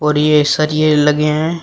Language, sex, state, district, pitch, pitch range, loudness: Hindi, male, Uttar Pradesh, Shamli, 150 Hz, 150-155 Hz, -13 LUFS